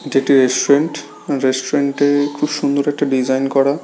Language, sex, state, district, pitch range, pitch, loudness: Bengali, male, West Bengal, Paschim Medinipur, 135-145 Hz, 140 Hz, -16 LUFS